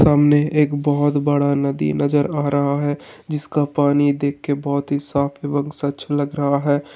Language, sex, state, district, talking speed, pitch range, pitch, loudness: Hindi, male, Uttar Pradesh, Varanasi, 170 wpm, 140-145 Hz, 145 Hz, -19 LUFS